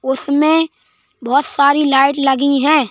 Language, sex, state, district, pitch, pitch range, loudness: Hindi, female, Madhya Pradesh, Bhopal, 280 Hz, 270-300 Hz, -14 LUFS